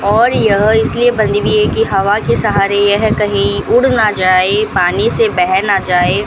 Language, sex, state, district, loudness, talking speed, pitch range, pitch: Hindi, female, Rajasthan, Bikaner, -12 LUFS, 190 wpm, 195-220 Hz, 205 Hz